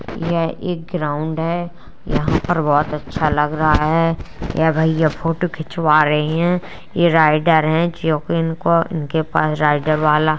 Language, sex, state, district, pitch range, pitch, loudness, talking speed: Hindi, female, Uttar Pradesh, Jalaun, 155-165 Hz, 160 Hz, -18 LUFS, 160 wpm